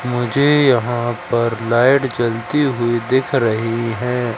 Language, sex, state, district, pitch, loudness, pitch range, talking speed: Hindi, male, Madhya Pradesh, Katni, 120 Hz, -17 LUFS, 115-130 Hz, 125 wpm